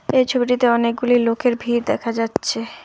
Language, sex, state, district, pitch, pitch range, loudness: Bengali, female, West Bengal, Alipurduar, 240 Hz, 230-250 Hz, -19 LUFS